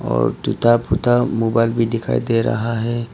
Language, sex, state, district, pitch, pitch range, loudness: Hindi, male, Arunachal Pradesh, Papum Pare, 115 Hz, 115-120 Hz, -18 LUFS